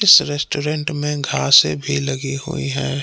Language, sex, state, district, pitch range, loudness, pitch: Hindi, male, Jharkhand, Palamu, 135-150 Hz, -17 LUFS, 140 Hz